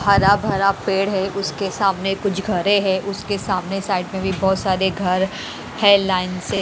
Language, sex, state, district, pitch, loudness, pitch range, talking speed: Hindi, female, Haryana, Rohtak, 195 Hz, -19 LUFS, 190-200 Hz, 190 wpm